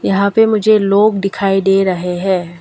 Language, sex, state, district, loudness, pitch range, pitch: Hindi, female, Arunachal Pradesh, Lower Dibang Valley, -13 LUFS, 190-205 Hz, 195 Hz